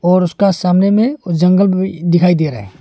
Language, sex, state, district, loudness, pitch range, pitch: Hindi, male, Arunachal Pradesh, Longding, -13 LUFS, 170-195 Hz, 180 Hz